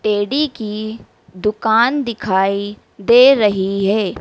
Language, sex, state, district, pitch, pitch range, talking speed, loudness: Hindi, female, Madhya Pradesh, Dhar, 210 Hz, 200-235 Hz, 100 wpm, -16 LUFS